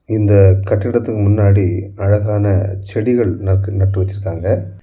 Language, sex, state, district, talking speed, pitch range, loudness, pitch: Tamil, male, Tamil Nadu, Kanyakumari, 100 wpm, 95-105 Hz, -15 LUFS, 100 Hz